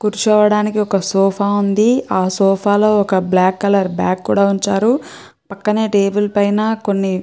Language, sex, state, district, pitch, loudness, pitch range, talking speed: Telugu, female, Andhra Pradesh, Chittoor, 200 Hz, -15 LUFS, 195-210 Hz, 140 wpm